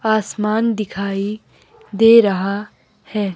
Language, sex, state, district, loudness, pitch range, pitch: Hindi, female, Himachal Pradesh, Shimla, -17 LUFS, 200-220 Hz, 210 Hz